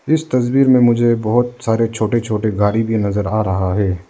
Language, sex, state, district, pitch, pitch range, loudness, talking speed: Hindi, male, Arunachal Pradesh, Lower Dibang Valley, 110 Hz, 105-120 Hz, -16 LUFS, 205 wpm